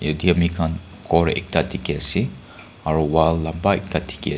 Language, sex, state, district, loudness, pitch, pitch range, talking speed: Nagamese, male, Nagaland, Kohima, -21 LUFS, 80 Hz, 80-90 Hz, 180 wpm